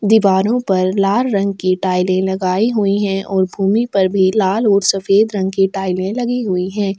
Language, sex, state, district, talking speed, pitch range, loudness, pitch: Hindi, female, Chhattisgarh, Sukma, 190 wpm, 190-205 Hz, -16 LUFS, 195 Hz